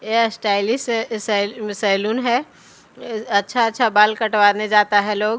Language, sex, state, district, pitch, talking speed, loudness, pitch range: Hindi, female, Bihar, Patna, 215 Hz, 135 wpm, -18 LUFS, 205-230 Hz